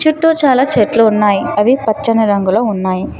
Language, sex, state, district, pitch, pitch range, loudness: Telugu, female, Telangana, Mahabubabad, 225 Hz, 205-265 Hz, -12 LUFS